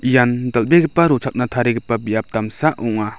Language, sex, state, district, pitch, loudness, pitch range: Garo, male, Meghalaya, South Garo Hills, 120 Hz, -17 LUFS, 115-130 Hz